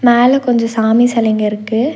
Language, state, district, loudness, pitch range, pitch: Tamil, Tamil Nadu, Nilgiris, -13 LUFS, 220-245 Hz, 230 Hz